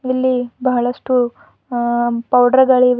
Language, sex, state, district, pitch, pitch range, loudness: Kannada, female, Karnataka, Bidar, 250 Hz, 240-255 Hz, -16 LUFS